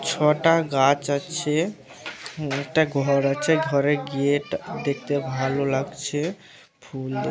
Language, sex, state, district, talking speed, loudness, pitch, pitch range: Bengali, male, West Bengal, Malda, 105 wpm, -23 LUFS, 145 Hz, 140-160 Hz